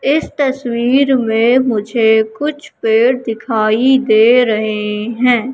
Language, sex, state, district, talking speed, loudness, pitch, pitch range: Hindi, female, Madhya Pradesh, Katni, 110 wpm, -13 LUFS, 235 Hz, 220-260 Hz